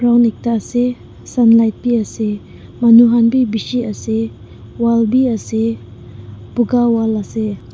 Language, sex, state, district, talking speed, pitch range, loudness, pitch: Nagamese, female, Nagaland, Dimapur, 125 wpm, 220-240 Hz, -15 LUFS, 230 Hz